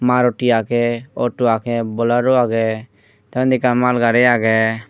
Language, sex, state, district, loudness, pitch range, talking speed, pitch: Chakma, male, Tripura, Unakoti, -17 LUFS, 115-125 Hz, 145 wpm, 120 Hz